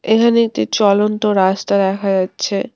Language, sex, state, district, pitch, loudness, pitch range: Bengali, female, West Bengal, Cooch Behar, 200 Hz, -15 LUFS, 195-220 Hz